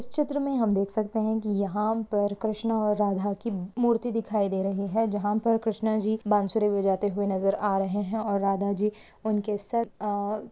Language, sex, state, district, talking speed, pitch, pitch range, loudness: Hindi, female, Jharkhand, Jamtara, 205 wpm, 210 Hz, 200-220 Hz, -27 LUFS